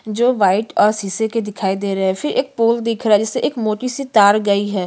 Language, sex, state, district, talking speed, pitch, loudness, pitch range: Hindi, female, Chhattisgarh, Kabirdham, 235 wpm, 215 Hz, -17 LUFS, 200-230 Hz